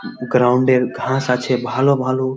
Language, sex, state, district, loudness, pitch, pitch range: Bengali, male, West Bengal, Malda, -17 LUFS, 130 Hz, 125-130 Hz